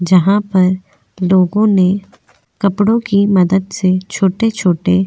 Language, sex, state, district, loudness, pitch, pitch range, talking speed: Hindi, female, Goa, North and South Goa, -14 LUFS, 190 Hz, 185-200 Hz, 120 wpm